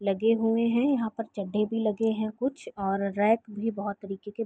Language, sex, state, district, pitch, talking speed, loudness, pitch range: Hindi, female, Chhattisgarh, Raigarh, 220 Hz, 215 wpm, -28 LUFS, 205-225 Hz